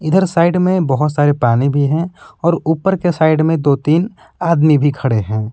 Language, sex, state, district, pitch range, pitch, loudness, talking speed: Hindi, male, Jharkhand, Palamu, 145-170 Hz, 155 Hz, -15 LUFS, 205 wpm